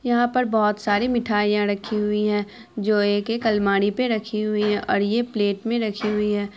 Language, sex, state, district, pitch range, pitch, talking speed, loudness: Hindi, female, Bihar, Araria, 205-225 Hz, 210 Hz, 210 wpm, -22 LUFS